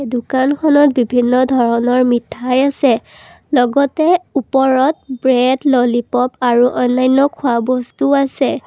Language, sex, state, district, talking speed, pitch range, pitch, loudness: Assamese, female, Assam, Kamrup Metropolitan, 90 wpm, 245-275 Hz, 260 Hz, -14 LUFS